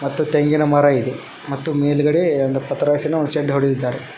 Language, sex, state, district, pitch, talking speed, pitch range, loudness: Kannada, male, Karnataka, Koppal, 145 Hz, 145 wpm, 135-150 Hz, -18 LUFS